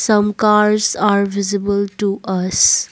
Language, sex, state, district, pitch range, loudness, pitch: English, female, Assam, Kamrup Metropolitan, 200-210 Hz, -15 LUFS, 200 Hz